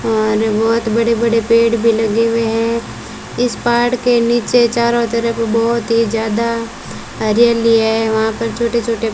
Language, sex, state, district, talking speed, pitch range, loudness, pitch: Hindi, female, Rajasthan, Bikaner, 170 wpm, 225-235 Hz, -15 LUFS, 230 Hz